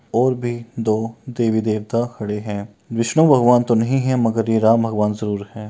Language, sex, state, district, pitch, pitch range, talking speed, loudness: Maithili, male, Bihar, Kishanganj, 115 Hz, 110-120 Hz, 190 wpm, -19 LUFS